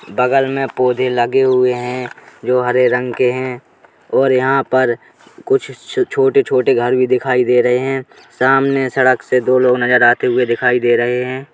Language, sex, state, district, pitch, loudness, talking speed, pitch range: Hindi, male, Uttar Pradesh, Jalaun, 125 Hz, -15 LUFS, 180 wpm, 125-135 Hz